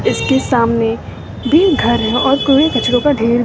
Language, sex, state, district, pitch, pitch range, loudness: Hindi, female, Bihar, West Champaran, 250 Hz, 235-280 Hz, -13 LUFS